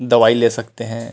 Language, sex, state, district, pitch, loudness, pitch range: Chhattisgarhi, male, Chhattisgarh, Rajnandgaon, 115 Hz, -14 LUFS, 115-120 Hz